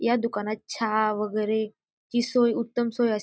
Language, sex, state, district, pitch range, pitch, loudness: Marathi, female, Maharashtra, Dhule, 215-240 Hz, 225 Hz, -26 LUFS